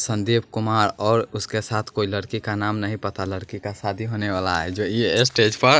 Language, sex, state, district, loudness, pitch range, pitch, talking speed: Hindi, male, Bihar, West Champaran, -22 LUFS, 100-110 Hz, 105 Hz, 215 wpm